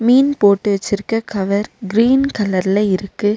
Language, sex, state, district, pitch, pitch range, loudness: Tamil, female, Tamil Nadu, Nilgiris, 205 Hz, 200-230 Hz, -16 LUFS